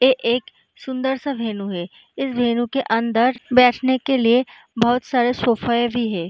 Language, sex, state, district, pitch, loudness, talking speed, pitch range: Hindi, female, Uttar Pradesh, Muzaffarnagar, 245 Hz, -20 LUFS, 170 wpm, 235-260 Hz